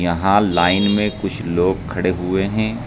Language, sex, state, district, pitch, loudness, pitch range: Hindi, male, Uttar Pradesh, Saharanpur, 95 Hz, -18 LUFS, 90-105 Hz